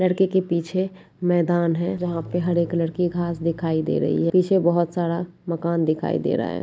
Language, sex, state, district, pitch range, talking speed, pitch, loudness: Hindi, female, Uttarakhand, Tehri Garhwal, 170-180 Hz, 210 wpm, 175 Hz, -22 LUFS